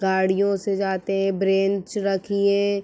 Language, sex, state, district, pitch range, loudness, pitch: Hindi, female, Uttar Pradesh, Etah, 195-200 Hz, -22 LUFS, 195 Hz